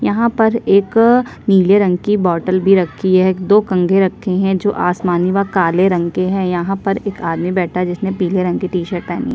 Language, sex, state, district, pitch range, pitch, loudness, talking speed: Hindi, female, Chhattisgarh, Sukma, 180-200 Hz, 190 Hz, -15 LUFS, 205 wpm